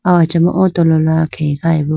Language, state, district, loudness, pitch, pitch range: Idu Mishmi, Arunachal Pradesh, Lower Dibang Valley, -13 LUFS, 165 Hz, 160-175 Hz